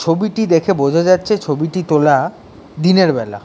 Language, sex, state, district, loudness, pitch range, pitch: Bengali, male, West Bengal, Kolkata, -15 LUFS, 150-185 Hz, 165 Hz